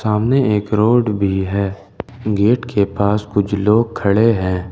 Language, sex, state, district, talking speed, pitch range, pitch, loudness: Hindi, male, Jharkhand, Ranchi, 150 wpm, 100-115 Hz, 105 Hz, -16 LUFS